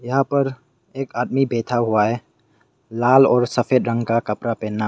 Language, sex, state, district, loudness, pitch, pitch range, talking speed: Hindi, male, Meghalaya, West Garo Hills, -19 LUFS, 120 Hz, 115-130 Hz, 170 wpm